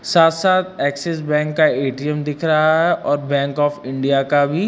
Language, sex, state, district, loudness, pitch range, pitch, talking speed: Hindi, male, Uttar Pradesh, Lucknow, -18 LUFS, 140-165 Hz, 150 Hz, 190 wpm